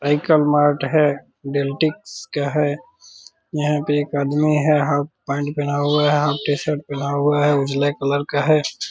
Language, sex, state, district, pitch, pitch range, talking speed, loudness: Hindi, male, Bihar, Purnia, 145 Hz, 145-150 Hz, 175 wpm, -19 LUFS